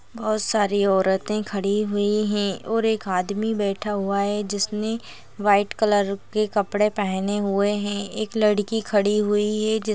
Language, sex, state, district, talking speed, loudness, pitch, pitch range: Hindi, female, Chhattisgarh, Balrampur, 155 wpm, -23 LUFS, 205 Hz, 200-215 Hz